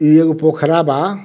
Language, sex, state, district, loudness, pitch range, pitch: Bhojpuri, male, Bihar, Muzaffarpur, -14 LUFS, 150-165 Hz, 160 Hz